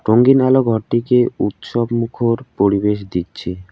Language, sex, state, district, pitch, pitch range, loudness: Bengali, male, West Bengal, Alipurduar, 115 Hz, 100-120 Hz, -17 LUFS